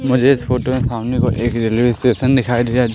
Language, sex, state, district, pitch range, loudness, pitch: Hindi, male, Madhya Pradesh, Katni, 120-130 Hz, -16 LUFS, 125 Hz